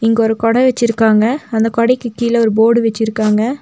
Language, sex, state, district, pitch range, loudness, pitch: Tamil, female, Tamil Nadu, Nilgiris, 220-235 Hz, -14 LUFS, 230 Hz